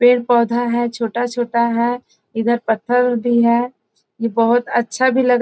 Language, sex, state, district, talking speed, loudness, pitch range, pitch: Hindi, female, Bihar, Gopalganj, 155 wpm, -17 LUFS, 235-245 Hz, 240 Hz